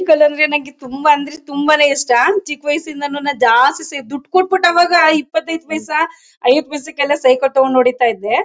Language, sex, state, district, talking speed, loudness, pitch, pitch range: Kannada, female, Karnataka, Mysore, 170 wpm, -14 LUFS, 295 Hz, 280-320 Hz